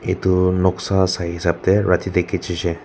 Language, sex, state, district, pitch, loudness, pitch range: Nagamese, male, Nagaland, Kohima, 90 Hz, -19 LUFS, 85-95 Hz